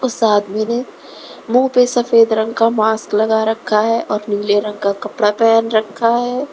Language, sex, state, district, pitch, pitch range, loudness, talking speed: Hindi, female, Uttar Pradesh, Lalitpur, 220 Hz, 210-230 Hz, -15 LUFS, 185 wpm